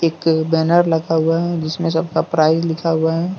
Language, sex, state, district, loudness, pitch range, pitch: Hindi, male, Jharkhand, Deoghar, -17 LUFS, 160-165 Hz, 165 Hz